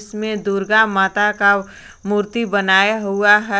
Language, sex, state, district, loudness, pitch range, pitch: Hindi, female, Jharkhand, Garhwa, -16 LUFS, 200-210 Hz, 205 Hz